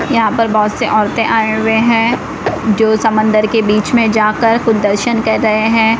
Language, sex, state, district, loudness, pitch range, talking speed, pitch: Hindi, female, Odisha, Malkangiri, -12 LUFS, 215-230 Hz, 190 wpm, 220 Hz